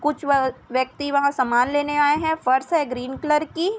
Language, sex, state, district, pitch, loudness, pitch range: Hindi, female, Chhattisgarh, Bilaspur, 285 Hz, -21 LUFS, 260-300 Hz